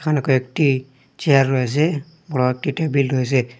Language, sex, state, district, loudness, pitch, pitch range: Bengali, male, Assam, Hailakandi, -19 LUFS, 135 Hz, 130-150 Hz